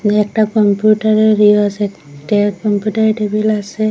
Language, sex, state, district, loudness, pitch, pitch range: Bengali, female, Assam, Hailakandi, -14 LUFS, 210 Hz, 205-215 Hz